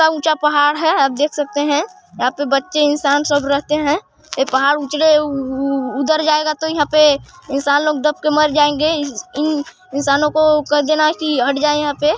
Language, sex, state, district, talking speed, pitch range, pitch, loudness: Hindi, female, Chhattisgarh, Raigarh, 180 wpm, 285-305 Hz, 295 Hz, -16 LUFS